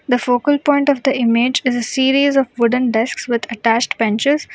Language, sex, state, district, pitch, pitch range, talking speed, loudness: English, female, Karnataka, Bangalore, 250 Hz, 235-275 Hz, 200 wpm, -16 LUFS